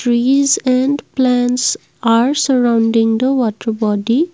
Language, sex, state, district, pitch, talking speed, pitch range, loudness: English, female, Assam, Kamrup Metropolitan, 245 Hz, 110 wpm, 230-265 Hz, -15 LUFS